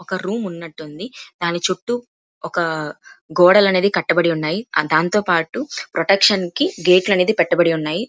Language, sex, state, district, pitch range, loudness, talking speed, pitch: Telugu, female, Andhra Pradesh, Chittoor, 170-200 Hz, -17 LUFS, 140 wpm, 180 Hz